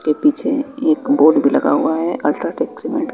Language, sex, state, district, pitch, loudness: Hindi, male, Bihar, West Champaran, 280 Hz, -16 LUFS